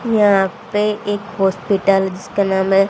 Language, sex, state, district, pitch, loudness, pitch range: Hindi, female, Haryana, Rohtak, 200 Hz, -17 LUFS, 195-210 Hz